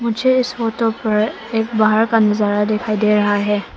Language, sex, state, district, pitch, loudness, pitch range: Hindi, female, Arunachal Pradesh, Papum Pare, 220 Hz, -17 LUFS, 210-225 Hz